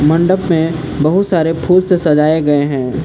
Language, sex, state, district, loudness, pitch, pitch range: Hindi, male, Jharkhand, Palamu, -13 LUFS, 160 Hz, 150-175 Hz